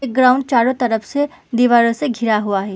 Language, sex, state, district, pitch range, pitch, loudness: Hindi, female, Uttar Pradesh, Muzaffarnagar, 225-260 Hz, 240 Hz, -16 LUFS